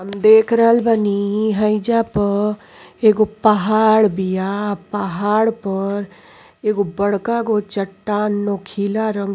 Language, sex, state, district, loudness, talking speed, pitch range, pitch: Bhojpuri, female, Uttar Pradesh, Ghazipur, -17 LUFS, 115 wpm, 200-215 Hz, 210 Hz